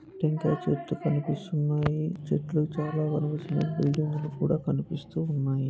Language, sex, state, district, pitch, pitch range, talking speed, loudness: Telugu, male, Andhra Pradesh, Anantapur, 150 Hz, 150-160 Hz, 105 wpm, -29 LUFS